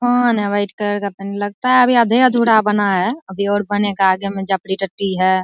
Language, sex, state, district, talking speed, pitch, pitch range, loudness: Hindi, female, Bihar, Araria, 220 wpm, 205 Hz, 195-230 Hz, -16 LUFS